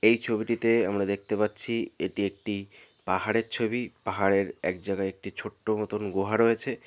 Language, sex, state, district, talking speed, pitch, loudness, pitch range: Bengali, male, West Bengal, North 24 Parganas, 150 wpm, 105 Hz, -28 LUFS, 100-115 Hz